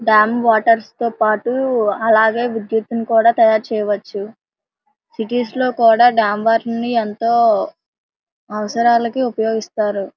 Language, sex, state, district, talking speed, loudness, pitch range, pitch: Telugu, female, Andhra Pradesh, Srikakulam, 105 wpm, -16 LUFS, 220-235 Hz, 225 Hz